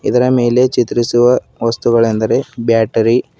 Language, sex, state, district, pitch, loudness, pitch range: Kannada, male, Karnataka, Bidar, 120 Hz, -13 LUFS, 115-125 Hz